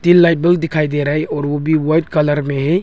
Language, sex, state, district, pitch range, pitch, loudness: Hindi, male, Arunachal Pradesh, Longding, 145-165 Hz, 155 Hz, -15 LUFS